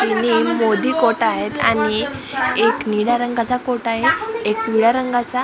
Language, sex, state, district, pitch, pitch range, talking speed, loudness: Marathi, female, Maharashtra, Gondia, 240 Hz, 225-250 Hz, 165 wpm, -18 LUFS